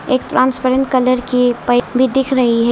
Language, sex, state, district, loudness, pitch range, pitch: Hindi, female, Arunachal Pradesh, Lower Dibang Valley, -14 LUFS, 245-260 Hz, 255 Hz